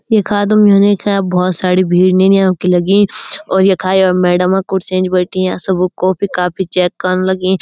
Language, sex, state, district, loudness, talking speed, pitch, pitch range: Garhwali, female, Uttarakhand, Uttarkashi, -12 LUFS, 180 wpm, 185 Hz, 185-195 Hz